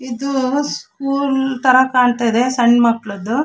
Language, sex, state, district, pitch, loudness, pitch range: Kannada, female, Karnataka, Shimoga, 255 Hz, -16 LUFS, 235-270 Hz